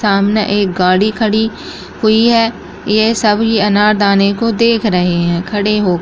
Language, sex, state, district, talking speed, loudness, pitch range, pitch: Hindi, female, Bihar, Bhagalpur, 160 wpm, -13 LUFS, 200-220 Hz, 210 Hz